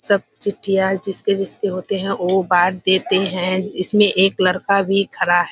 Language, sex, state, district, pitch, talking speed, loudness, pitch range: Hindi, female, Bihar, Kishanganj, 190 Hz, 175 wpm, -17 LUFS, 185-200 Hz